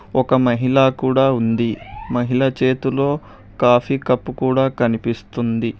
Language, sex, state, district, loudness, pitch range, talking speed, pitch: Telugu, male, Telangana, Hyderabad, -18 LUFS, 115-130 Hz, 105 wpm, 125 Hz